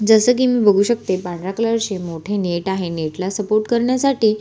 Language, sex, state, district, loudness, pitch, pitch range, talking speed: Marathi, female, Maharashtra, Solapur, -18 LUFS, 210 Hz, 185-230 Hz, 205 wpm